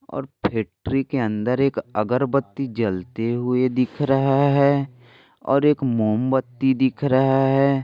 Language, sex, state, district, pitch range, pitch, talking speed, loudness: Hindi, male, Maharashtra, Aurangabad, 120-135 Hz, 130 Hz, 130 wpm, -21 LUFS